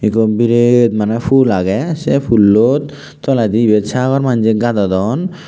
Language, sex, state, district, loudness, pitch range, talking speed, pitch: Chakma, male, Tripura, West Tripura, -13 LUFS, 110-135 Hz, 130 wpm, 120 Hz